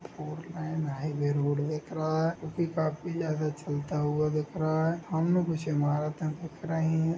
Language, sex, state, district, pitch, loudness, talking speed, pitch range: Hindi, male, Jharkhand, Jamtara, 155 Hz, -31 LUFS, 185 wpm, 150-165 Hz